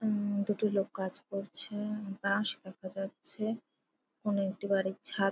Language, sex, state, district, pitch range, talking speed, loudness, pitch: Bengali, female, West Bengal, Jalpaiguri, 195-210 Hz, 135 wpm, -34 LUFS, 200 Hz